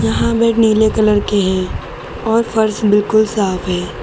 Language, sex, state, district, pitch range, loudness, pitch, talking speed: Hindi, female, Uttar Pradesh, Lucknow, 185-220 Hz, -15 LUFS, 210 Hz, 165 wpm